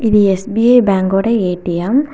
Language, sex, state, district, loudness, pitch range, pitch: Tamil, female, Tamil Nadu, Kanyakumari, -13 LUFS, 190-230 Hz, 205 Hz